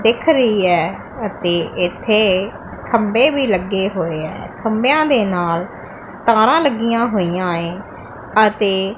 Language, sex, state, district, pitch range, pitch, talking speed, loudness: Punjabi, female, Punjab, Pathankot, 175-230 Hz, 200 Hz, 120 wpm, -16 LUFS